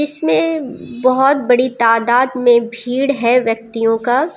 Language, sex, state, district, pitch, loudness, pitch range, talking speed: Hindi, female, Jharkhand, Deoghar, 245 Hz, -15 LUFS, 235-270 Hz, 125 wpm